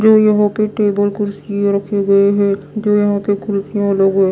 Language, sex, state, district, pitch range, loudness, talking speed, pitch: Hindi, female, Odisha, Malkangiri, 200-210 Hz, -15 LUFS, 180 wpm, 205 Hz